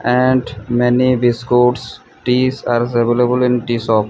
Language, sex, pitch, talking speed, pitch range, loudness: English, male, 125 Hz, 130 wpm, 120-125 Hz, -15 LUFS